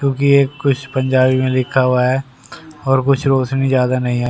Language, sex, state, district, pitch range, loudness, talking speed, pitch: Hindi, male, Haryana, Rohtak, 130-135 Hz, -15 LUFS, 195 wpm, 130 Hz